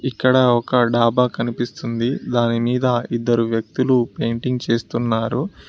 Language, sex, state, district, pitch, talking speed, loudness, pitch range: Telugu, male, Telangana, Mahabubabad, 120 Hz, 105 wpm, -19 LUFS, 115-125 Hz